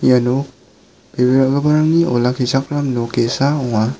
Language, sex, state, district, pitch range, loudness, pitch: Garo, male, Meghalaya, West Garo Hills, 125-140 Hz, -16 LUFS, 130 Hz